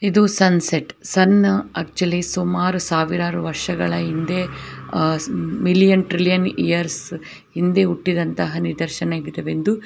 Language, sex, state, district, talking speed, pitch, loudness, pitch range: Kannada, female, Karnataka, Belgaum, 110 wpm, 175 Hz, -19 LUFS, 165-185 Hz